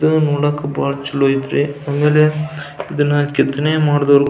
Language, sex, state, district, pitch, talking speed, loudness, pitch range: Kannada, male, Karnataka, Belgaum, 145 Hz, 140 wpm, -16 LUFS, 140-155 Hz